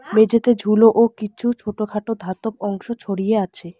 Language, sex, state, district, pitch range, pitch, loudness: Bengali, female, West Bengal, Alipurduar, 205-230 Hz, 215 Hz, -19 LUFS